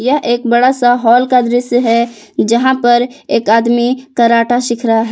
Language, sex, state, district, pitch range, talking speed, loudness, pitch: Hindi, female, Jharkhand, Palamu, 235-250 Hz, 175 wpm, -12 LUFS, 240 Hz